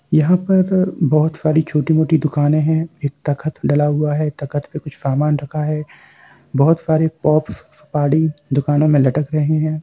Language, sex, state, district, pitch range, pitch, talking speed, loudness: Hindi, male, Bihar, Samastipur, 145-160 Hz, 150 Hz, 165 wpm, -17 LUFS